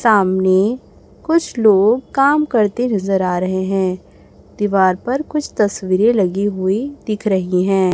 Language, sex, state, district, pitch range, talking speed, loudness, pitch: Hindi, male, Chhattisgarh, Raipur, 185-235 Hz, 135 wpm, -16 LUFS, 200 Hz